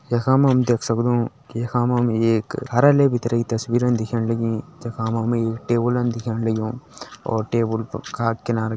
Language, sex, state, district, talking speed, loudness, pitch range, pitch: Hindi, male, Uttarakhand, Tehri Garhwal, 190 wpm, -21 LUFS, 115-120 Hz, 115 Hz